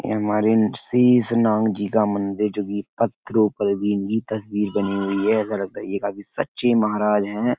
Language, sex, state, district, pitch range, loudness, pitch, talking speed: Hindi, male, Uttar Pradesh, Etah, 100-110 Hz, -21 LUFS, 105 Hz, 190 wpm